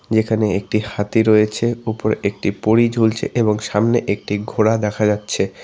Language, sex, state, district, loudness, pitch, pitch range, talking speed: Bengali, male, West Bengal, Cooch Behar, -18 LUFS, 110 Hz, 105-110 Hz, 150 wpm